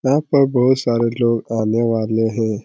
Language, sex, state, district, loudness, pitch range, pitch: Hindi, male, Bihar, Supaul, -17 LUFS, 115-130 Hz, 115 Hz